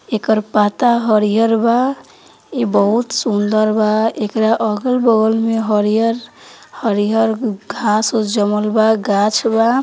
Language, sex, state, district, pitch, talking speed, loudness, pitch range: Hindi, female, Bihar, East Champaran, 220 Hz, 120 wpm, -15 LUFS, 215-230 Hz